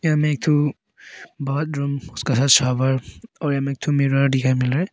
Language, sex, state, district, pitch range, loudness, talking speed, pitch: Hindi, male, Arunachal Pradesh, Papum Pare, 130-145 Hz, -20 LUFS, 195 wpm, 140 Hz